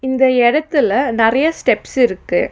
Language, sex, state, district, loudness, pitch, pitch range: Tamil, female, Tamil Nadu, Nilgiris, -15 LUFS, 260 Hz, 240-285 Hz